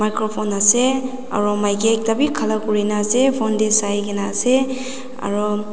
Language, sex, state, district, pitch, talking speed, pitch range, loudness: Nagamese, female, Nagaland, Dimapur, 215 Hz, 155 wpm, 205-255 Hz, -18 LUFS